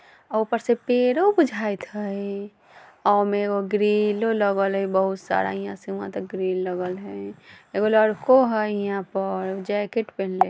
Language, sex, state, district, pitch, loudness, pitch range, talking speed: Bajjika, female, Bihar, Vaishali, 205 Hz, -23 LUFS, 190-215 Hz, 165 wpm